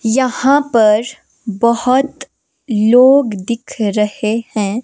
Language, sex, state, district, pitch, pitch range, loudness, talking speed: Hindi, female, Himachal Pradesh, Shimla, 235 Hz, 215-260 Hz, -14 LUFS, 85 wpm